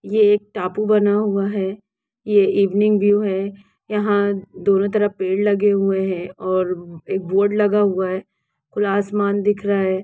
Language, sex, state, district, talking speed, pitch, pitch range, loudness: Hindi, female, Jharkhand, Jamtara, 160 wpm, 200 Hz, 190-205 Hz, -19 LUFS